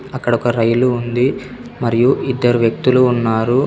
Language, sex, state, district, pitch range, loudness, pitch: Telugu, male, Telangana, Komaram Bheem, 120-130 Hz, -15 LUFS, 120 Hz